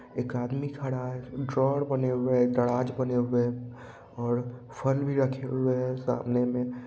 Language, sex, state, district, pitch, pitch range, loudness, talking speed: Hindi, male, Bihar, Purnia, 125 Hz, 125-130 Hz, -28 LUFS, 185 wpm